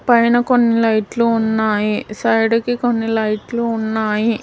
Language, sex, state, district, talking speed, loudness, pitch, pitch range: Telugu, female, Telangana, Hyderabad, 120 wpm, -16 LUFS, 225 Hz, 220-235 Hz